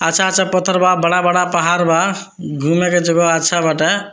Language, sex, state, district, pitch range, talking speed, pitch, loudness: Bhojpuri, male, Bihar, Muzaffarpur, 170-185 Hz, 160 wpm, 175 Hz, -14 LUFS